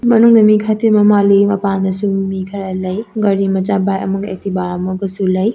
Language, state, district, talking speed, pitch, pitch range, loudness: Manipuri, Manipur, Imphal West, 160 wpm, 195 Hz, 190-210 Hz, -14 LUFS